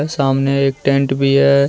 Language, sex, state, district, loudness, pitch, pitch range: Hindi, male, Jharkhand, Deoghar, -15 LUFS, 140 Hz, 135-140 Hz